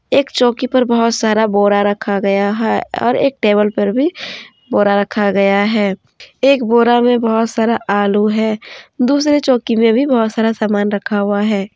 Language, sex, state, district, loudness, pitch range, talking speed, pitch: Hindi, female, Jharkhand, Deoghar, -14 LUFS, 205-240 Hz, 180 wpm, 220 Hz